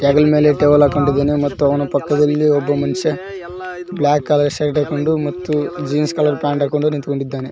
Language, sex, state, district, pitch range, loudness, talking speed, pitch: Kannada, male, Karnataka, Koppal, 145-150 Hz, -16 LUFS, 150 wpm, 145 Hz